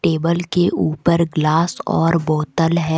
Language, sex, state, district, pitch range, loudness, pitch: Hindi, female, Jharkhand, Deoghar, 160-170 Hz, -18 LUFS, 165 Hz